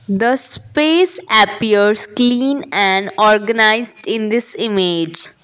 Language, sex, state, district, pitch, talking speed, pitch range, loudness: English, female, Assam, Kamrup Metropolitan, 220 Hz, 100 wpm, 205-245 Hz, -14 LUFS